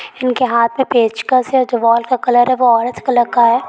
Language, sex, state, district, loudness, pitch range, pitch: Hindi, female, Rajasthan, Nagaur, -14 LUFS, 235-255 Hz, 245 Hz